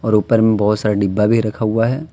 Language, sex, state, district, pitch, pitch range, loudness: Hindi, male, Jharkhand, Deoghar, 110 Hz, 105-115 Hz, -16 LUFS